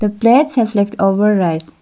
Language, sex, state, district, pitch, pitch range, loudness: English, female, Arunachal Pradesh, Lower Dibang Valley, 210 Hz, 195-230 Hz, -14 LUFS